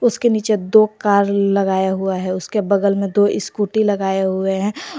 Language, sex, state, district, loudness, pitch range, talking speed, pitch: Hindi, female, Jharkhand, Garhwa, -17 LUFS, 195-215 Hz, 180 wpm, 200 Hz